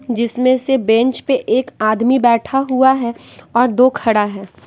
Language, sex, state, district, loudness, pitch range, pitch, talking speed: Hindi, female, Bihar, West Champaran, -15 LUFS, 230-260 Hz, 245 Hz, 165 wpm